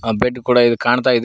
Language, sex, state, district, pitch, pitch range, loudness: Kannada, male, Karnataka, Koppal, 120 Hz, 120-125 Hz, -15 LUFS